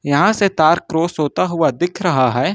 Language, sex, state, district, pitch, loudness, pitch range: Hindi, male, Uttar Pradesh, Lucknow, 165 Hz, -16 LUFS, 150-180 Hz